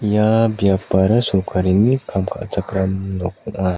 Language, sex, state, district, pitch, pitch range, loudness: Garo, male, Meghalaya, South Garo Hills, 95 Hz, 95-105 Hz, -18 LUFS